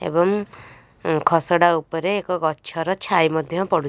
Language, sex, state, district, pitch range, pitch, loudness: Odia, female, Odisha, Nuapada, 160-190 Hz, 170 Hz, -21 LUFS